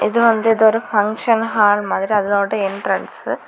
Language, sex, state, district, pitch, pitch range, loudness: Tamil, female, Tamil Nadu, Kanyakumari, 210 Hz, 205-225 Hz, -16 LUFS